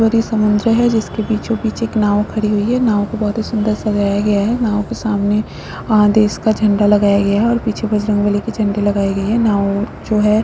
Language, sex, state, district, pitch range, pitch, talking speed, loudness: Hindi, female, Jharkhand, Sahebganj, 205-220 Hz, 215 Hz, 235 wpm, -16 LUFS